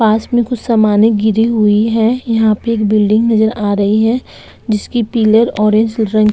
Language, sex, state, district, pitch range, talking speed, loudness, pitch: Hindi, female, Uttar Pradesh, Etah, 215-230 Hz, 190 wpm, -13 LUFS, 220 Hz